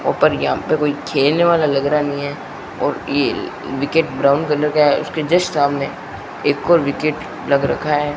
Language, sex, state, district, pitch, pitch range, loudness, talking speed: Hindi, male, Rajasthan, Bikaner, 150 Hz, 140-155 Hz, -18 LUFS, 190 wpm